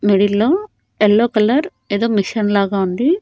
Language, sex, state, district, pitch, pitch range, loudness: Telugu, female, Andhra Pradesh, Annamaya, 215 Hz, 200-245 Hz, -16 LUFS